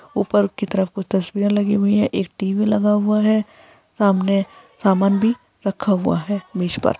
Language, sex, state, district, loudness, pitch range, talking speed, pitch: Hindi, female, Bihar, Gaya, -19 LUFS, 195-210 Hz, 180 wpm, 205 Hz